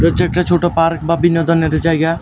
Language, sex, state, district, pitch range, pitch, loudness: Bengali, male, Tripura, West Tripura, 165-170 Hz, 165 Hz, -14 LUFS